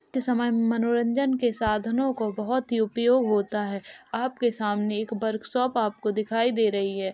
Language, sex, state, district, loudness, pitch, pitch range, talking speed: Hindi, male, Uttar Pradesh, Jalaun, -26 LUFS, 230 Hz, 215-245 Hz, 160 wpm